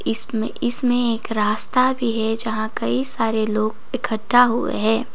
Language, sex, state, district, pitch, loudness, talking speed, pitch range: Hindi, female, Sikkim, Gangtok, 225 Hz, -19 LUFS, 150 wpm, 215-245 Hz